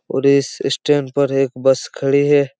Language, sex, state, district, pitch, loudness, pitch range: Hindi, male, Chhattisgarh, Raigarh, 140 Hz, -17 LUFS, 135-145 Hz